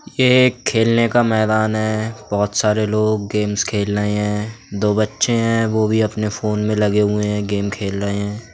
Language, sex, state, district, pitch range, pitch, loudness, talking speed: Hindi, male, Uttar Pradesh, Budaun, 105-110 Hz, 105 Hz, -18 LUFS, 190 wpm